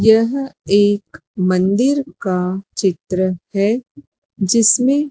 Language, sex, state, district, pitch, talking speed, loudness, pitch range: Hindi, female, Madhya Pradesh, Dhar, 205 Hz, 80 wpm, -17 LUFS, 190-255 Hz